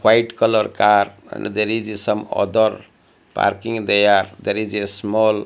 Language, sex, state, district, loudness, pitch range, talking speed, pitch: English, male, Odisha, Malkangiri, -18 LUFS, 100-110 Hz, 175 wpm, 105 Hz